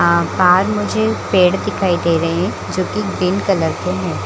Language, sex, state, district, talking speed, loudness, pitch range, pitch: Hindi, female, Chhattisgarh, Bilaspur, 195 wpm, -16 LUFS, 170-195 Hz, 180 Hz